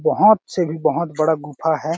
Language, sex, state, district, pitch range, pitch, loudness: Hindi, male, Chhattisgarh, Balrampur, 155-170 Hz, 160 Hz, -19 LUFS